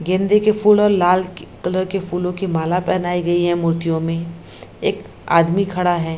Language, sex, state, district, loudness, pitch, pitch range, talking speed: Hindi, female, Bihar, Lakhisarai, -18 LUFS, 180 Hz, 170-185 Hz, 185 wpm